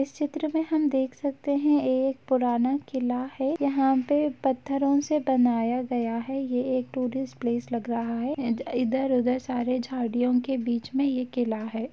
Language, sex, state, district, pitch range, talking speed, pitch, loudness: Hindi, female, Uttar Pradesh, Etah, 245-275 Hz, 175 wpm, 260 Hz, -26 LUFS